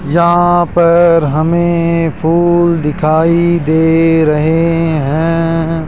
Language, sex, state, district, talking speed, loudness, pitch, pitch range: Hindi, male, Rajasthan, Jaipur, 80 wpm, -11 LUFS, 165 Hz, 160-170 Hz